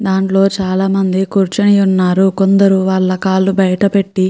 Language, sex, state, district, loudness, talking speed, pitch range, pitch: Telugu, female, Andhra Pradesh, Krishna, -13 LUFS, 125 wpm, 190-195 Hz, 190 Hz